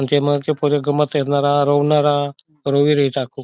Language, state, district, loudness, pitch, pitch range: Bhili, Maharashtra, Dhule, -17 LUFS, 145 Hz, 140-145 Hz